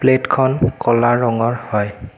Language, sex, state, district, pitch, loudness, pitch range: Assamese, male, Assam, Kamrup Metropolitan, 120 Hz, -17 LUFS, 105-130 Hz